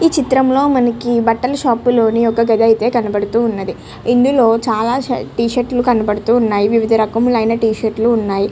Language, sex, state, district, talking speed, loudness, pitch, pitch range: Telugu, female, Andhra Pradesh, Srikakulam, 120 wpm, -14 LUFS, 230 Hz, 225-245 Hz